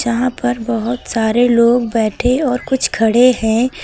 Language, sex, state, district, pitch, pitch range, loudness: Hindi, female, Uttar Pradesh, Lucknow, 240 Hz, 230-250 Hz, -15 LUFS